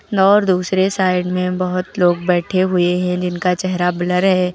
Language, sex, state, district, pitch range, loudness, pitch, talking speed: Hindi, female, Uttar Pradesh, Lucknow, 180-185 Hz, -17 LUFS, 180 Hz, 170 wpm